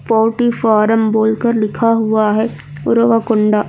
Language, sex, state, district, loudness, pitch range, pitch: Hindi, female, Andhra Pradesh, Anantapur, -14 LUFS, 215-230 Hz, 220 Hz